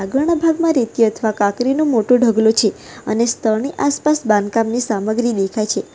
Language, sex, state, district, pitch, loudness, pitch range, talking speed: Gujarati, female, Gujarat, Valsad, 230 Hz, -17 LUFS, 215-270 Hz, 150 wpm